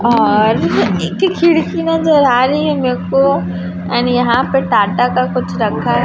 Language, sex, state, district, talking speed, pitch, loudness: Hindi, female, Chhattisgarh, Raipur, 170 wpm, 185 Hz, -14 LUFS